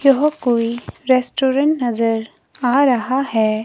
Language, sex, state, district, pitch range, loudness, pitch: Hindi, female, Himachal Pradesh, Shimla, 230-270 Hz, -18 LUFS, 255 Hz